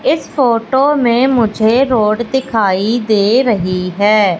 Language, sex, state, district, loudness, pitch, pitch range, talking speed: Hindi, female, Madhya Pradesh, Katni, -13 LUFS, 230 Hz, 210-255 Hz, 125 wpm